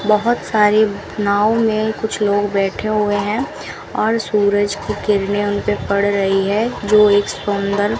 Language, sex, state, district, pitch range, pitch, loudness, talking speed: Hindi, female, Rajasthan, Bikaner, 200-215 Hz, 205 Hz, -17 LUFS, 155 wpm